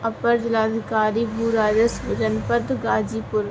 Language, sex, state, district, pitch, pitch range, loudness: Hindi, female, Uttar Pradesh, Ghazipur, 225 Hz, 220-230 Hz, -22 LUFS